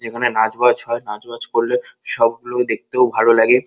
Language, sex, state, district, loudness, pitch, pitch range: Bengali, male, West Bengal, Kolkata, -18 LUFS, 120 Hz, 115-125 Hz